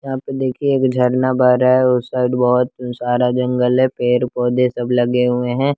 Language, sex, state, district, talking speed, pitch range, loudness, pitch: Hindi, male, Bihar, West Champaran, 205 wpm, 125-130 Hz, -16 LUFS, 125 Hz